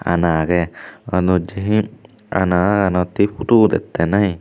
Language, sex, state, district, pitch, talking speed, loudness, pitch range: Chakma, male, Tripura, Unakoti, 90 Hz, 120 wpm, -17 LUFS, 85-100 Hz